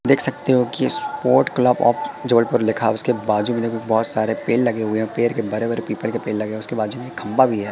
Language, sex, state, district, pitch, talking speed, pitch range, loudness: Hindi, female, Madhya Pradesh, Katni, 115 Hz, 270 wpm, 110-125 Hz, -20 LUFS